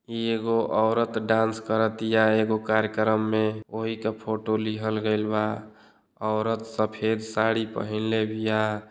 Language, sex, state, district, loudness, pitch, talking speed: Bhojpuri, male, Uttar Pradesh, Deoria, -26 LUFS, 110 Hz, 130 wpm